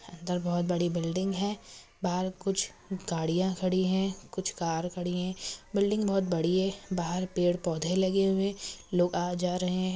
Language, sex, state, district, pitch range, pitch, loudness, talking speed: Hindi, female, Maharashtra, Pune, 175-190 Hz, 185 Hz, -30 LUFS, 170 wpm